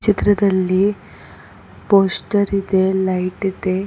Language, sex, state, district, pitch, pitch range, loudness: Kannada, female, Karnataka, Koppal, 195 Hz, 185-200 Hz, -17 LUFS